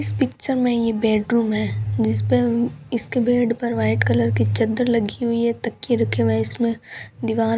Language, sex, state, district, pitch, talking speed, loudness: Hindi, female, Rajasthan, Bikaner, 220 Hz, 190 wpm, -21 LUFS